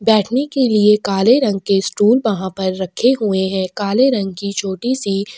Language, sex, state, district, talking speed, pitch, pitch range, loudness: Hindi, female, Chhattisgarh, Sukma, 200 wpm, 205 Hz, 195-240 Hz, -16 LUFS